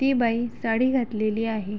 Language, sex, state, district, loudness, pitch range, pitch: Marathi, female, Maharashtra, Sindhudurg, -24 LUFS, 215-245 Hz, 230 Hz